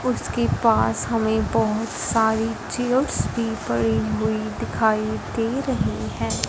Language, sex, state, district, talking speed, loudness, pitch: Hindi, female, Punjab, Fazilka, 120 wpm, -22 LUFS, 220 Hz